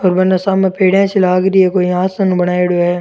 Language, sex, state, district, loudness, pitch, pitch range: Rajasthani, male, Rajasthan, Churu, -13 LUFS, 185 Hz, 180-190 Hz